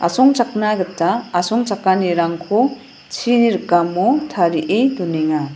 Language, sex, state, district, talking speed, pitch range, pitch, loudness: Garo, female, Meghalaya, West Garo Hills, 75 wpm, 170-240 Hz, 195 Hz, -17 LUFS